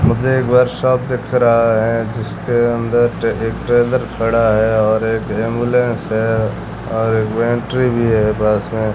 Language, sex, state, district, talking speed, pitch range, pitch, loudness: Hindi, male, Rajasthan, Bikaner, 165 wpm, 110-120 Hz, 115 Hz, -16 LUFS